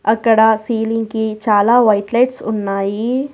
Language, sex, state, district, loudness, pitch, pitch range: Telugu, female, Telangana, Hyderabad, -15 LUFS, 220 Hz, 215-230 Hz